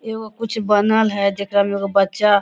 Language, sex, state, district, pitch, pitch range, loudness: Hindi, female, Jharkhand, Sahebganj, 205 Hz, 200-220 Hz, -18 LUFS